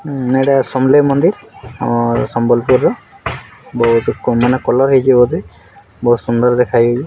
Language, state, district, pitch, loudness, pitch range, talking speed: Sambalpuri, Odisha, Sambalpur, 125 Hz, -13 LUFS, 120-135 Hz, 150 wpm